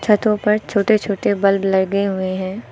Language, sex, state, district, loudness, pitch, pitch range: Hindi, female, Uttar Pradesh, Lucknow, -18 LUFS, 200 Hz, 195-210 Hz